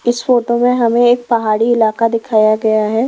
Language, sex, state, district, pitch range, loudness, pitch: Hindi, female, Himachal Pradesh, Shimla, 220-240 Hz, -13 LUFS, 235 Hz